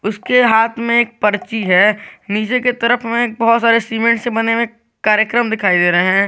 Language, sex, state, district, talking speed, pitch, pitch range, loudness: Hindi, male, Jharkhand, Garhwa, 200 wpm, 225 Hz, 210-235 Hz, -14 LUFS